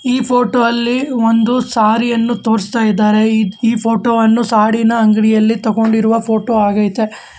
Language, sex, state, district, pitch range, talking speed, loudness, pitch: Kannada, male, Karnataka, Bangalore, 220-235 Hz, 140 wpm, -13 LUFS, 225 Hz